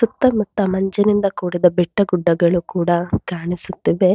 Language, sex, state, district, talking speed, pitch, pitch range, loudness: Kannada, female, Karnataka, Bangalore, 100 wpm, 185 Hz, 175-200 Hz, -18 LUFS